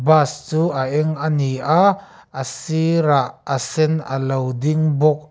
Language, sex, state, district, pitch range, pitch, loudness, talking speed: Mizo, male, Mizoram, Aizawl, 135-155 Hz, 150 Hz, -19 LUFS, 170 wpm